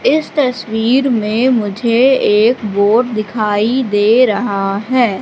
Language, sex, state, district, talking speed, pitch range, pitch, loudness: Hindi, female, Madhya Pradesh, Katni, 115 wpm, 210-255 Hz, 230 Hz, -13 LUFS